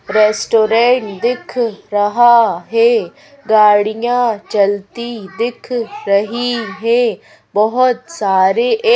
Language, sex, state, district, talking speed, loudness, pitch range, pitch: Hindi, female, Madhya Pradesh, Bhopal, 80 wpm, -14 LUFS, 210-245 Hz, 230 Hz